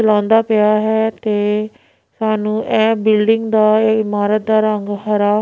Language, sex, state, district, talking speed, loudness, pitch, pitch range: Punjabi, female, Punjab, Pathankot, 135 wpm, -15 LUFS, 215 Hz, 210-220 Hz